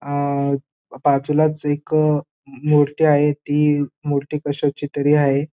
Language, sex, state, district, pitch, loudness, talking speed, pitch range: Marathi, male, Maharashtra, Dhule, 145 Hz, -19 LUFS, 110 wpm, 140-150 Hz